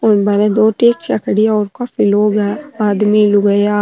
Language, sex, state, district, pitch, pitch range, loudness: Marwari, female, Rajasthan, Nagaur, 210 Hz, 205-220 Hz, -13 LUFS